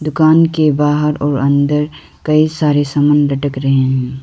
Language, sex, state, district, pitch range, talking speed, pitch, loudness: Hindi, female, Arunachal Pradesh, Lower Dibang Valley, 140-150 Hz, 155 wpm, 145 Hz, -13 LUFS